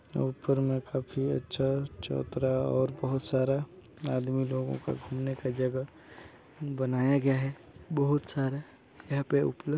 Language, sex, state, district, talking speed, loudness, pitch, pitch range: Hindi, male, Chhattisgarh, Balrampur, 135 wpm, -31 LUFS, 135 Hz, 130-140 Hz